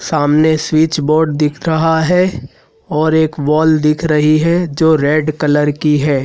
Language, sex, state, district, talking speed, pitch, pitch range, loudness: Hindi, male, Madhya Pradesh, Dhar, 165 wpm, 155 Hz, 150-160 Hz, -13 LUFS